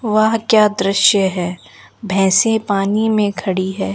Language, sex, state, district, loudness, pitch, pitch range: Hindi, female, Rajasthan, Bikaner, -15 LUFS, 200 Hz, 190-215 Hz